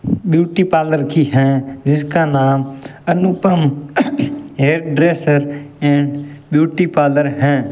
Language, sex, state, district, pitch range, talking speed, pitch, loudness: Hindi, male, Rajasthan, Bikaner, 140-170 Hz, 100 wpm, 145 Hz, -15 LUFS